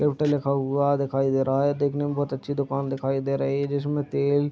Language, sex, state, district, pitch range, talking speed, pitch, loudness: Hindi, male, Bihar, Madhepura, 135-145 Hz, 265 wpm, 140 Hz, -25 LUFS